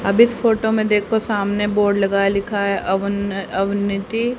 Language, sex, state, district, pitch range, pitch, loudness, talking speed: Hindi, female, Haryana, Rohtak, 200-220 Hz, 200 Hz, -19 LUFS, 180 wpm